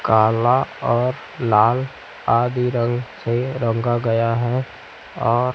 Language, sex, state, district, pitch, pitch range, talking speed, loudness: Hindi, male, Chhattisgarh, Raipur, 120 Hz, 115-125 Hz, 110 wpm, -20 LUFS